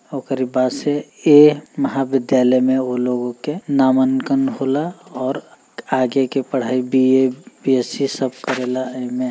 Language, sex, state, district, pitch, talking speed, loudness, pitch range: Bhojpuri, male, Uttar Pradesh, Deoria, 130 Hz, 130 wpm, -18 LUFS, 130-140 Hz